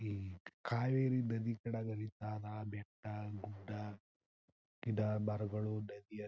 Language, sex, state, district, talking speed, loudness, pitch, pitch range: Kannada, male, Karnataka, Chamarajanagar, 95 wpm, -41 LUFS, 105 Hz, 105-110 Hz